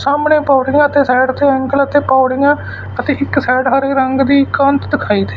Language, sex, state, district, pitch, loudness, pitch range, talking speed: Punjabi, male, Punjab, Fazilka, 275 Hz, -13 LUFS, 265-285 Hz, 190 wpm